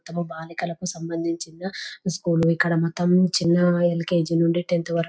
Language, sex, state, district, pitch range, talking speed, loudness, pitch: Telugu, female, Telangana, Nalgonda, 165-175 Hz, 130 wpm, -23 LUFS, 170 Hz